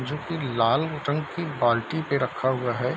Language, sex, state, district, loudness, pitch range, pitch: Hindi, male, Bihar, Darbhanga, -25 LUFS, 125-155 Hz, 140 Hz